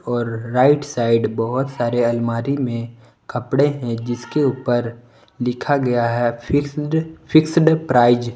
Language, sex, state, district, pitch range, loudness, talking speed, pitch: Hindi, male, Jharkhand, Palamu, 120-145 Hz, -19 LUFS, 120 wpm, 120 Hz